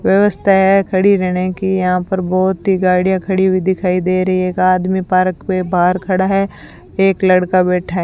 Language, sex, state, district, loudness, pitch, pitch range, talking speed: Hindi, female, Rajasthan, Bikaner, -14 LUFS, 185 Hz, 185-190 Hz, 200 wpm